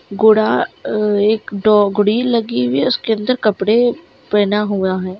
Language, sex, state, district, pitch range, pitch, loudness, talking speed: Hindi, female, Bihar, Kishanganj, 200-220 Hz, 210 Hz, -15 LUFS, 150 wpm